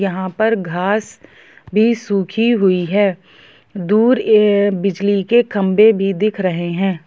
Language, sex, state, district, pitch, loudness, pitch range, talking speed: Hindi, female, Jharkhand, Sahebganj, 200 Hz, -15 LUFS, 190-215 Hz, 135 wpm